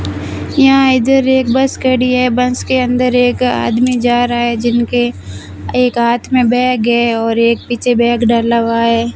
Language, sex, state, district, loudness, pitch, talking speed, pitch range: Hindi, female, Rajasthan, Barmer, -13 LUFS, 240 Hz, 175 wpm, 235-250 Hz